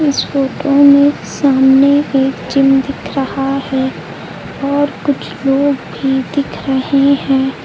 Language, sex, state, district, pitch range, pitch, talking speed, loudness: Hindi, female, Uttar Pradesh, Lucknow, 270-280 Hz, 275 Hz, 125 wpm, -13 LUFS